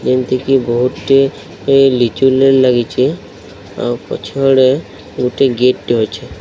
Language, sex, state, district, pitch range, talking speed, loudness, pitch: Odia, male, Odisha, Sambalpur, 120-135 Hz, 105 wpm, -13 LUFS, 130 Hz